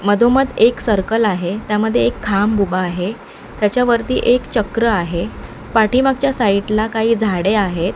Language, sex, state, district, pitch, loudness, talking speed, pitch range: Marathi, male, Maharashtra, Mumbai Suburban, 215 Hz, -16 LUFS, 145 wpm, 195-230 Hz